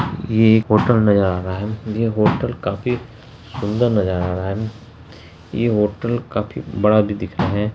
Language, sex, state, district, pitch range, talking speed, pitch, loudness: Hindi, male, Bihar, Saharsa, 100-115 Hz, 180 wpm, 105 Hz, -19 LUFS